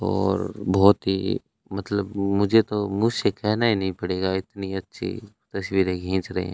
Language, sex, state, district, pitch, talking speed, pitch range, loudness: Hindi, male, Rajasthan, Bikaner, 100 Hz, 165 wpm, 95-105 Hz, -24 LUFS